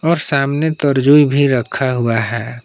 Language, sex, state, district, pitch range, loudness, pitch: Hindi, male, Jharkhand, Palamu, 120-145 Hz, -14 LUFS, 140 Hz